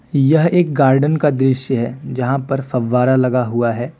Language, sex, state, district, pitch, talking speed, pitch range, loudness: Hindi, male, Jharkhand, Deoghar, 130 Hz, 180 wpm, 125-145 Hz, -16 LUFS